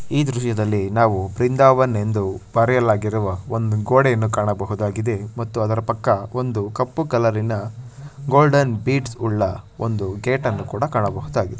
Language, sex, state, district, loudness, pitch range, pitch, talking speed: Kannada, male, Karnataka, Shimoga, -20 LUFS, 105-125 Hz, 115 Hz, 120 wpm